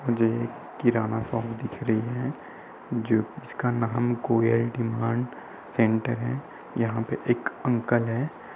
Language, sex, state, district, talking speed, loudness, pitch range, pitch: Hindi, male, Uttar Pradesh, Budaun, 135 wpm, -27 LUFS, 115-120 Hz, 115 Hz